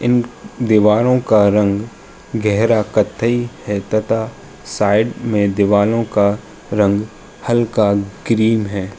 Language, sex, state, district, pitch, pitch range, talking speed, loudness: Hindi, male, Uttar Pradesh, Jalaun, 110 Hz, 100-115 Hz, 105 wpm, -16 LUFS